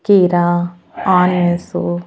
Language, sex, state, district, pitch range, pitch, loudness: Telugu, female, Andhra Pradesh, Annamaya, 175-180 Hz, 175 Hz, -15 LUFS